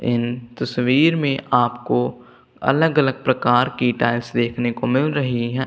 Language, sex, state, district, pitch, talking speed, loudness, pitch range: Hindi, male, Punjab, Kapurthala, 125 Hz, 150 wpm, -20 LUFS, 120-135 Hz